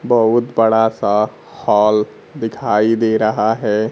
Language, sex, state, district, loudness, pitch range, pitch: Hindi, male, Bihar, Kaimur, -16 LUFS, 105-115 Hz, 110 Hz